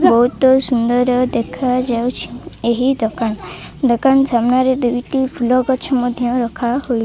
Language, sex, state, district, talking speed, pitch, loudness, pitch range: Odia, female, Odisha, Malkangiri, 110 wpm, 245 Hz, -16 LUFS, 235-260 Hz